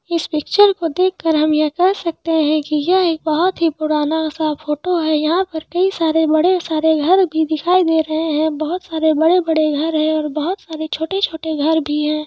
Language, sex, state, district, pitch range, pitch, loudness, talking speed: Hindi, female, Jharkhand, Sahebganj, 310-345 Hz, 320 Hz, -17 LUFS, 215 wpm